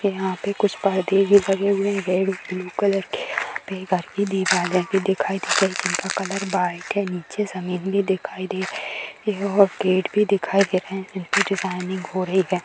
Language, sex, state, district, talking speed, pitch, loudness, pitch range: Hindi, female, Bihar, Samastipur, 215 wpm, 190 Hz, -22 LUFS, 185-200 Hz